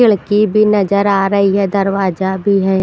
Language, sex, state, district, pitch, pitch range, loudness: Hindi, female, Punjab, Pathankot, 200 Hz, 195-205 Hz, -13 LUFS